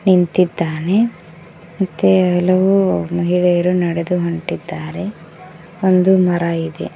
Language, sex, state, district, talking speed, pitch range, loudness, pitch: Kannada, female, Karnataka, Koppal, 75 wpm, 170-185 Hz, -16 LUFS, 175 Hz